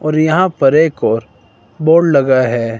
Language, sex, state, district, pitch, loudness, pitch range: Hindi, male, Himachal Pradesh, Shimla, 135 Hz, -12 LUFS, 115-155 Hz